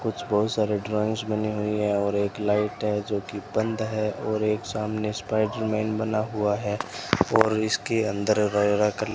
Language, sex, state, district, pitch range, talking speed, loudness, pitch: Hindi, male, Rajasthan, Bikaner, 105-110 Hz, 190 wpm, -25 LUFS, 105 Hz